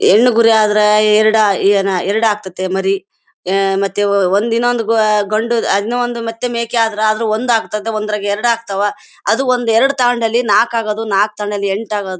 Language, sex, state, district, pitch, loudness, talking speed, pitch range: Kannada, female, Karnataka, Bellary, 215 Hz, -14 LUFS, 160 wpm, 205-235 Hz